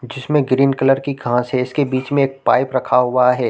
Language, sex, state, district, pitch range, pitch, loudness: Hindi, male, Chhattisgarh, Raigarh, 125-140 Hz, 130 Hz, -17 LUFS